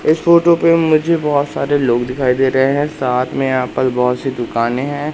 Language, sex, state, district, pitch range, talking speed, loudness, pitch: Hindi, male, Madhya Pradesh, Katni, 125-155 Hz, 220 wpm, -15 LUFS, 135 Hz